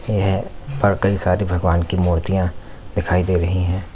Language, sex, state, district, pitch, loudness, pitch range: Hindi, male, Uttar Pradesh, Lalitpur, 95 Hz, -20 LUFS, 90-100 Hz